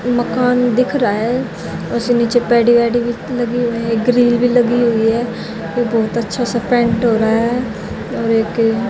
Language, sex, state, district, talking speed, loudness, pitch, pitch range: Hindi, female, Haryana, Jhajjar, 170 wpm, -16 LUFS, 235 Hz, 225-245 Hz